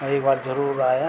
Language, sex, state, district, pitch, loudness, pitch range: Garhwali, male, Uttarakhand, Tehri Garhwal, 135 Hz, -22 LUFS, 130-140 Hz